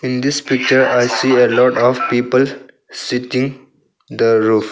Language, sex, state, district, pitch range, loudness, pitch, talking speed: English, male, Arunachal Pradesh, Longding, 120-130 Hz, -15 LUFS, 125 Hz, 150 wpm